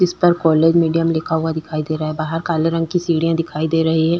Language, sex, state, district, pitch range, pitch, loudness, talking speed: Hindi, female, Bihar, Vaishali, 160-165 Hz, 165 Hz, -18 LUFS, 270 wpm